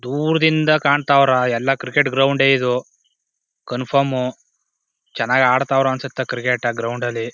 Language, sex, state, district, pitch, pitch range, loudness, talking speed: Kannada, male, Karnataka, Chamarajanagar, 130 Hz, 125-140 Hz, -18 LUFS, 115 wpm